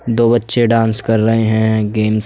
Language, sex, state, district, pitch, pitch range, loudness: Hindi, male, Uttar Pradesh, Budaun, 110 Hz, 110-115 Hz, -14 LUFS